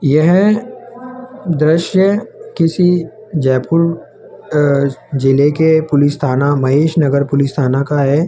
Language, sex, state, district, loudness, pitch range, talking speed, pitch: Hindi, male, Rajasthan, Jaipur, -14 LUFS, 140-180 Hz, 110 wpm, 155 Hz